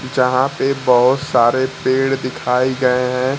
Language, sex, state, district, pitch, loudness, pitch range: Hindi, male, Bihar, Kaimur, 130 Hz, -16 LUFS, 125-130 Hz